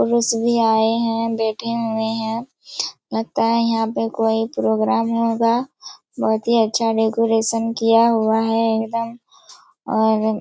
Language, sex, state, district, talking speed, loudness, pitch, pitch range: Hindi, female, Chhattisgarh, Raigarh, 140 wpm, -19 LUFS, 225 Hz, 220-230 Hz